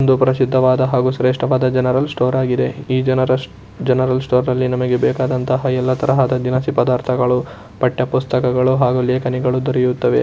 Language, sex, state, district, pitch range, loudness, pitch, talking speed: Kannada, male, Karnataka, Shimoga, 125-130 Hz, -17 LUFS, 130 Hz, 125 wpm